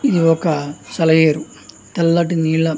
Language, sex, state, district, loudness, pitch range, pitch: Telugu, male, Andhra Pradesh, Anantapur, -16 LUFS, 150-165 Hz, 160 Hz